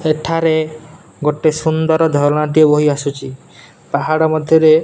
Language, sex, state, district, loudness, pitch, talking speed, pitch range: Odia, male, Odisha, Nuapada, -14 LUFS, 155 Hz, 125 wpm, 150-160 Hz